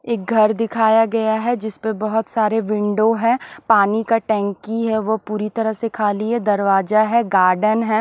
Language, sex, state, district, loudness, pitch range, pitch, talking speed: Hindi, female, Odisha, Nuapada, -18 LUFS, 215-225 Hz, 220 Hz, 185 wpm